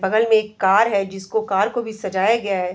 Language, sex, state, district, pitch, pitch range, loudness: Hindi, female, Bihar, Bhagalpur, 200 Hz, 190-220 Hz, -19 LUFS